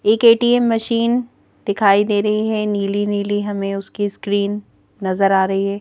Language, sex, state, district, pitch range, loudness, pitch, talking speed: Hindi, female, Madhya Pradesh, Bhopal, 200-220 Hz, -18 LUFS, 205 Hz, 165 wpm